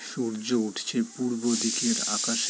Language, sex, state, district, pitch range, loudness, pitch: Bengali, male, West Bengal, Jalpaiguri, 115-125 Hz, -26 LUFS, 120 Hz